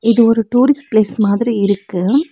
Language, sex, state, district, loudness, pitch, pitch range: Tamil, female, Tamil Nadu, Nilgiris, -14 LUFS, 225 Hz, 205-245 Hz